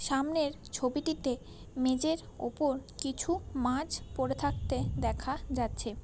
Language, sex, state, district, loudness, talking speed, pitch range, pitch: Bengali, female, West Bengal, Kolkata, -33 LUFS, 100 wpm, 260-310 Hz, 275 Hz